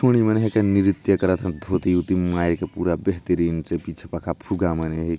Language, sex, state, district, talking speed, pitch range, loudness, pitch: Chhattisgarhi, male, Chhattisgarh, Jashpur, 160 wpm, 85-100 Hz, -22 LUFS, 90 Hz